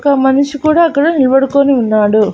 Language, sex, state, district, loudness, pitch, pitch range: Telugu, female, Andhra Pradesh, Annamaya, -11 LUFS, 275 Hz, 260-290 Hz